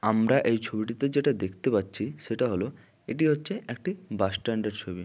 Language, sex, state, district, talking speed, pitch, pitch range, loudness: Bengali, male, West Bengal, Malda, 165 wpm, 110 Hz, 105-145 Hz, -28 LUFS